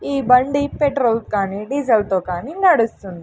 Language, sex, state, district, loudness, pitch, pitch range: Telugu, female, Andhra Pradesh, Sri Satya Sai, -18 LUFS, 235 Hz, 200-280 Hz